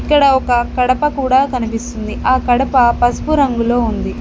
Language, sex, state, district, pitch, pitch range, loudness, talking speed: Telugu, female, Telangana, Mahabubabad, 250 Hz, 240-265 Hz, -14 LUFS, 145 wpm